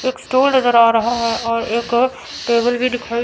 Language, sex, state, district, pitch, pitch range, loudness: Hindi, female, Chandigarh, Chandigarh, 240 Hz, 230-255 Hz, -16 LUFS